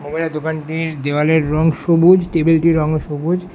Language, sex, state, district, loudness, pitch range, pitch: Bengali, male, West Bengal, Alipurduar, -16 LUFS, 155-165 Hz, 160 Hz